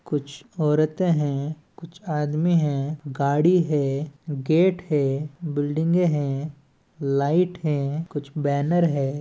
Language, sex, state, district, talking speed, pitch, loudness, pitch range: Chhattisgarhi, male, Chhattisgarh, Balrampur, 110 wpm, 150 Hz, -23 LUFS, 140-165 Hz